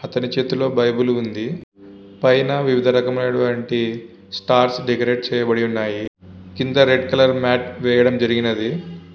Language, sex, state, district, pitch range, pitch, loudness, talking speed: Telugu, male, Andhra Pradesh, Visakhapatnam, 110-125 Hz, 120 Hz, -18 LUFS, 105 wpm